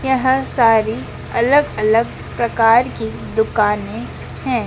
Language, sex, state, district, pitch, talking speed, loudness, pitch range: Hindi, female, Madhya Pradesh, Dhar, 230 Hz, 105 wpm, -17 LUFS, 215-250 Hz